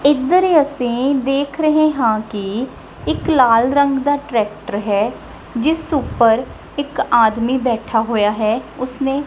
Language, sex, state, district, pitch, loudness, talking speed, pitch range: Punjabi, female, Punjab, Kapurthala, 255 Hz, -17 LUFS, 130 wpm, 225-285 Hz